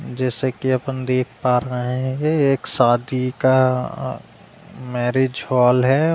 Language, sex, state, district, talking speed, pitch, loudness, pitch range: Hindi, male, Uttar Pradesh, Deoria, 125 wpm, 130 Hz, -19 LUFS, 125-130 Hz